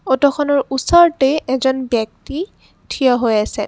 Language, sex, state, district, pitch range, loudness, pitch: Assamese, female, Assam, Kamrup Metropolitan, 255-290 Hz, -16 LUFS, 265 Hz